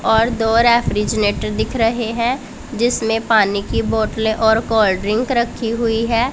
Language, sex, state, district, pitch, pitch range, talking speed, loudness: Hindi, female, Punjab, Pathankot, 225 Hz, 220-235 Hz, 150 wpm, -17 LUFS